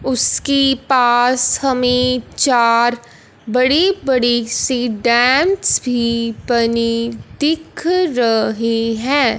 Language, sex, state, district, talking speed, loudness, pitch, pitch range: Hindi, female, Punjab, Fazilka, 75 wpm, -15 LUFS, 250 Hz, 235-270 Hz